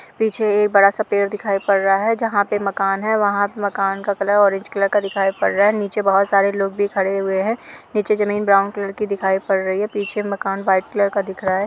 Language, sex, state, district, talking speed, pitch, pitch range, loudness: Hindi, female, Uttar Pradesh, Jalaun, 250 wpm, 200 Hz, 195-205 Hz, -18 LUFS